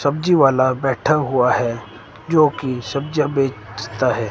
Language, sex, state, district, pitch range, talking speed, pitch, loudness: Hindi, male, Himachal Pradesh, Shimla, 120-145 Hz, 125 wpm, 130 Hz, -18 LUFS